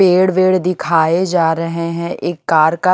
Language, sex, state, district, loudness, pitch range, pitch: Hindi, female, Punjab, Kapurthala, -15 LUFS, 165-185 Hz, 170 Hz